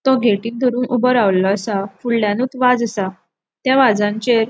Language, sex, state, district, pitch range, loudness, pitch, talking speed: Konkani, female, Goa, North and South Goa, 205-250 Hz, -17 LUFS, 235 Hz, 160 wpm